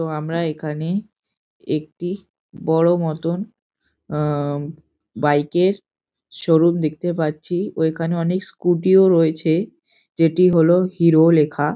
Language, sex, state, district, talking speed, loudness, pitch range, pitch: Bengali, male, West Bengal, North 24 Parganas, 110 wpm, -19 LUFS, 155-180 Hz, 165 Hz